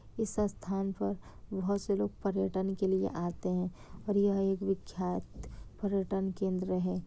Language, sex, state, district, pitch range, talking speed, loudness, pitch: Hindi, female, Bihar, Kishanganj, 180-195 Hz, 155 wpm, -34 LUFS, 190 Hz